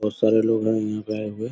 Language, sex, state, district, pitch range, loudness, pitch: Hindi, male, Bihar, Saharsa, 105-110 Hz, -22 LUFS, 110 Hz